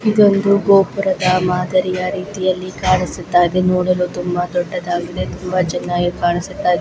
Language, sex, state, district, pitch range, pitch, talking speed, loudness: Kannada, female, Karnataka, Chamarajanagar, 175-185 Hz, 185 Hz, 115 wpm, -17 LUFS